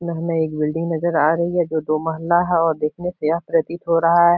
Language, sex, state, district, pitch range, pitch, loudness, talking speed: Hindi, male, Uttar Pradesh, Etah, 160-170 Hz, 165 Hz, -20 LUFS, 260 wpm